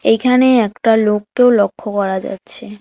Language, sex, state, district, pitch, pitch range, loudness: Bengali, female, West Bengal, Alipurduar, 220 Hz, 205-245 Hz, -14 LUFS